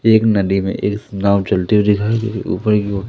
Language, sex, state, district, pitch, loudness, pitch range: Hindi, male, Madhya Pradesh, Umaria, 105 Hz, -16 LUFS, 100-110 Hz